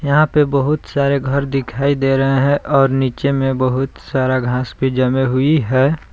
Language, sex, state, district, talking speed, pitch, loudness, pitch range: Hindi, male, Jharkhand, Palamu, 185 wpm, 135 Hz, -16 LUFS, 130-140 Hz